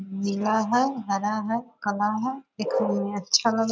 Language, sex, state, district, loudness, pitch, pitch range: Hindi, female, Bihar, Purnia, -25 LUFS, 215 Hz, 205-230 Hz